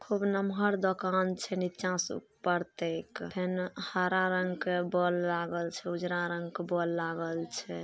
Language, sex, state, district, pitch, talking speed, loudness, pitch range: Maithili, female, Bihar, Samastipur, 180 Hz, 160 wpm, -32 LUFS, 170-185 Hz